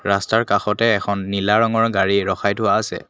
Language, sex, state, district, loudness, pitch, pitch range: Assamese, male, Assam, Kamrup Metropolitan, -18 LUFS, 100 Hz, 100-115 Hz